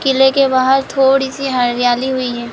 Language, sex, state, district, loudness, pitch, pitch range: Hindi, female, Bihar, Supaul, -14 LUFS, 265 Hz, 245-270 Hz